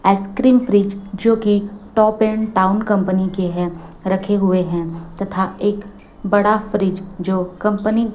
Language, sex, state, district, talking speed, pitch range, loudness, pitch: Hindi, female, Chhattisgarh, Raipur, 145 wpm, 190-210 Hz, -18 LUFS, 200 Hz